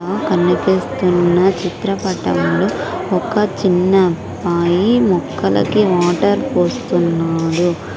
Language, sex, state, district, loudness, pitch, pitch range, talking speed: Telugu, female, Andhra Pradesh, Sri Satya Sai, -16 LUFS, 180 Hz, 175-195 Hz, 70 wpm